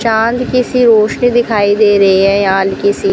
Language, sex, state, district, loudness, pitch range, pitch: Hindi, female, Rajasthan, Bikaner, -11 LUFS, 205-245 Hz, 225 Hz